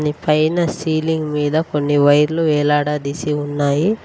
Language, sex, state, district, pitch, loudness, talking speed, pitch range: Telugu, female, Telangana, Mahabubabad, 150 Hz, -17 LUFS, 120 wpm, 145-160 Hz